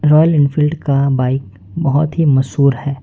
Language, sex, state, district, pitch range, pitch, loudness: Hindi, male, West Bengal, Alipurduar, 135-150 Hz, 140 Hz, -14 LUFS